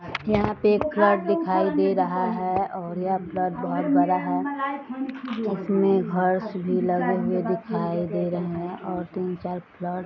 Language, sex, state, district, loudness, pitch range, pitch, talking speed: Hindi, female, Bihar, East Champaran, -25 LUFS, 180-205 Hz, 185 Hz, 150 wpm